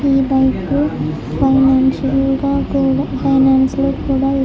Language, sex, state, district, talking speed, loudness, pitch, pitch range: Telugu, female, Andhra Pradesh, Guntur, 120 wpm, -15 LUFS, 270 Hz, 265-275 Hz